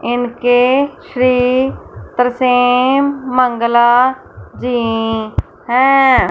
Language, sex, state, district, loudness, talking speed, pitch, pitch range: Hindi, female, Punjab, Fazilka, -13 LUFS, 55 wpm, 250 Hz, 240-260 Hz